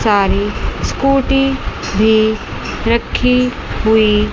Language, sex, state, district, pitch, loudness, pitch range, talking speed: Hindi, female, Chandigarh, Chandigarh, 220 Hz, -15 LUFS, 210-250 Hz, 70 wpm